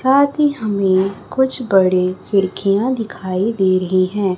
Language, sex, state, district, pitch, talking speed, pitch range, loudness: Hindi, female, Chhattisgarh, Raipur, 195 Hz, 135 wpm, 185-245 Hz, -17 LUFS